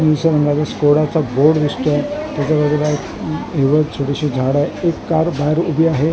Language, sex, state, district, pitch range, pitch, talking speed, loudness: Marathi, male, Maharashtra, Mumbai Suburban, 145-160 Hz, 150 Hz, 175 wpm, -16 LUFS